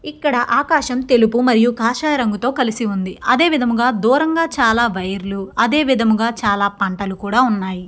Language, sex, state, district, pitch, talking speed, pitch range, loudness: Telugu, female, Andhra Pradesh, Guntur, 235 Hz, 150 wpm, 205-260 Hz, -16 LUFS